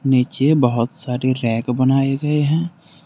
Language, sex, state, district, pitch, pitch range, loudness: Hindi, male, Jharkhand, Deoghar, 135 Hz, 125-150 Hz, -18 LUFS